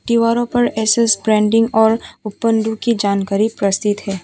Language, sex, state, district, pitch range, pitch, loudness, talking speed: Hindi, female, Tripura, West Tripura, 205-230 Hz, 220 Hz, -16 LUFS, 125 wpm